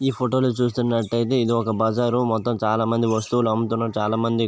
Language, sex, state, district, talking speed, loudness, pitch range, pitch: Telugu, male, Andhra Pradesh, Visakhapatnam, 200 wpm, -22 LUFS, 110-120 Hz, 115 Hz